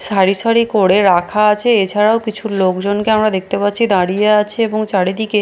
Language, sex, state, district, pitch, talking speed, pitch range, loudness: Bengali, female, Bihar, Katihar, 210 Hz, 165 wpm, 195-220 Hz, -14 LUFS